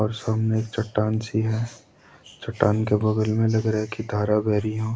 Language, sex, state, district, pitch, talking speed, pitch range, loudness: Hindi, male, Uttarakhand, Tehri Garhwal, 110 Hz, 215 wpm, 105-110 Hz, -24 LUFS